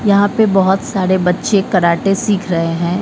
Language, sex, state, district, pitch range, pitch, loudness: Hindi, female, Bihar, Katihar, 180-200 Hz, 190 Hz, -14 LUFS